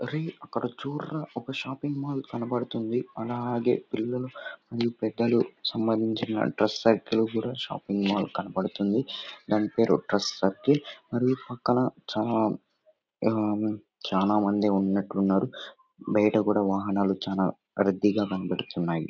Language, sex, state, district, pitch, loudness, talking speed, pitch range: Telugu, male, Andhra Pradesh, Anantapur, 110 Hz, -28 LUFS, 110 wpm, 100-125 Hz